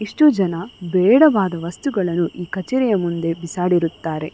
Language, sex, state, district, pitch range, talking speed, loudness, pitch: Kannada, female, Karnataka, Dakshina Kannada, 170-200 Hz, 140 wpm, -19 LUFS, 180 Hz